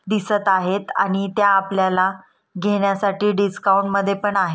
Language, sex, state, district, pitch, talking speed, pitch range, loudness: Marathi, female, Maharashtra, Pune, 195 Hz, 145 wpm, 195-205 Hz, -19 LUFS